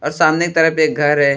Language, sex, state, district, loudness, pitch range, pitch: Bhojpuri, male, Uttar Pradesh, Deoria, -14 LUFS, 145-160 Hz, 155 Hz